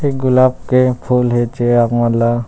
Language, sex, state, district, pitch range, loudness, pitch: Chhattisgarhi, male, Chhattisgarh, Rajnandgaon, 120-130 Hz, -14 LUFS, 120 Hz